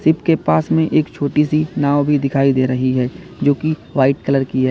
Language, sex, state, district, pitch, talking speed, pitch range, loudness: Hindi, male, Uttar Pradesh, Lalitpur, 145 Hz, 230 wpm, 130-155 Hz, -17 LUFS